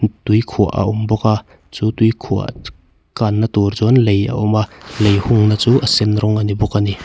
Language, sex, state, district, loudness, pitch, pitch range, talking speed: Mizo, male, Mizoram, Aizawl, -16 LUFS, 105 Hz, 105-110 Hz, 215 wpm